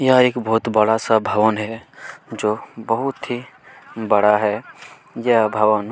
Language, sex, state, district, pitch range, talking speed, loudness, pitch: Hindi, male, Chhattisgarh, Kabirdham, 105-120 Hz, 130 wpm, -19 LUFS, 110 Hz